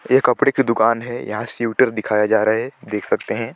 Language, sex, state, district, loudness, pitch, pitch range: Hindi, male, Chhattisgarh, Sarguja, -19 LUFS, 115 Hz, 110-125 Hz